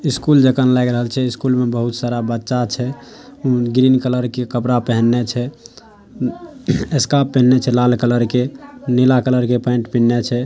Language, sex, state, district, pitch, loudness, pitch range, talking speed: Maithili, male, Bihar, Saharsa, 125 Hz, -16 LUFS, 120-130 Hz, 180 wpm